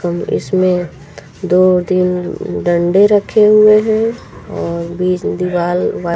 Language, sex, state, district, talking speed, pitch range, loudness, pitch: Hindi, female, Uttar Pradesh, Lucknow, 115 wpm, 175-200 Hz, -13 LUFS, 180 Hz